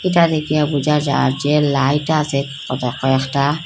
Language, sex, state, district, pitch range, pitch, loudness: Bengali, female, Assam, Hailakandi, 140-150 Hz, 145 Hz, -17 LUFS